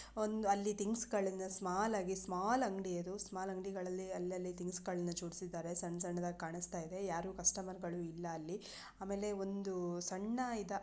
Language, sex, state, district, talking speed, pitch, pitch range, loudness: Kannada, female, Karnataka, Bijapur, 145 wpm, 190 Hz, 175-200 Hz, -41 LUFS